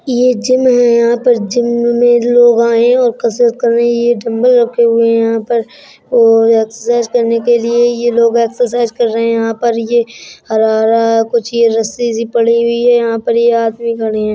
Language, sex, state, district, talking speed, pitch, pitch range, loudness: Bundeli, female, Uttar Pradesh, Budaun, 215 wpm, 235 Hz, 230-240 Hz, -11 LUFS